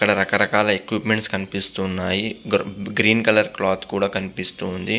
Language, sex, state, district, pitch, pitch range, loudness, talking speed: Telugu, male, Andhra Pradesh, Visakhapatnam, 100 Hz, 95-110 Hz, -21 LUFS, 120 wpm